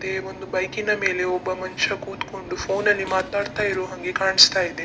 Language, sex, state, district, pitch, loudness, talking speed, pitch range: Kannada, female, Karnataka, Dakshina Kannada, 190 Hz, -22 LUFS, 185 wpm, 185-200 Hz